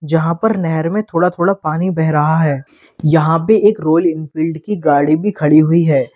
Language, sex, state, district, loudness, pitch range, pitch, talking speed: Hindi, male, Uttar Pradesh, Lalitpur, -14 LUFS, 155-180 Hz, 160 Hz, 205 wpm